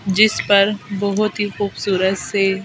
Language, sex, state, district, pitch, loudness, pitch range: Hindi, female, Madhya Pradesh, Bhopal, 200 Hz, -18 LUFS, 195-205 Hz